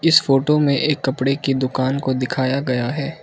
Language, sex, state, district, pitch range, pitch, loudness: Hindi, male, Arunachal Pradesh, Lower Dibang Valley, 130-145 Hz, 135 Hz, -19 LUFS